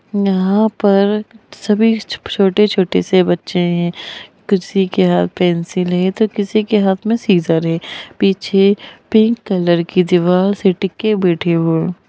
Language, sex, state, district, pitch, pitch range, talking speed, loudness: Hindi, female, Bihar, Sitamarhi, 195 Hz, 180-210 Hz, 145 wpm, -15 LUFS